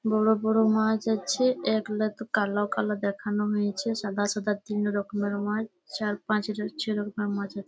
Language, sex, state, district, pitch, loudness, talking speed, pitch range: Bengali, female, West Bengal, Malda, 210 Hz, -27 LUFS, 180 wpm, 205-220 Hz